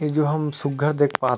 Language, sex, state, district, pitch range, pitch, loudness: Chhattisgarhi, male, Chhattisgarh, Rajnandgaon, 140-150 Hz, 150 Hz, -22 LUFS